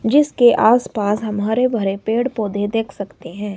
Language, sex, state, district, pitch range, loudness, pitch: Hindi, male, Himachal Pradesh, Shimla, 205-240 Hz, -17 LUFS, 220 Hz